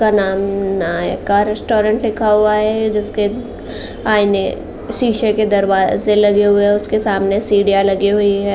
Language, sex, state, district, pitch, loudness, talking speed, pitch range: Hindi, female, Uttar Pradesh, Jalaun, 210 Hz, -15 LUFS, 120 wpm, 200-215 Hz